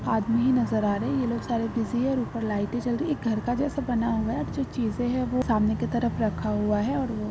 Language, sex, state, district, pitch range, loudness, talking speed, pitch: Hindi, female, Jharkhand, Sahebganj, 220-250 Hz, -26 LUFS, 240 wpm, 235 Hz